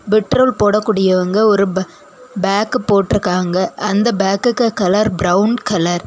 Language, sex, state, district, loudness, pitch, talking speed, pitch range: Tamil, female, Tamil Nadu, Kanyakumari, -15 LUFS, 205 Hz, 130 wpm, 190-220 Hz